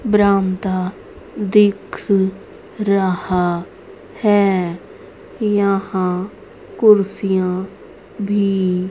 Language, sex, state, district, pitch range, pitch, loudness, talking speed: Hindi, female, Haryana, Rohtak, 185-205 Hz, 195 Hz, -18 LUFS, 45 wpm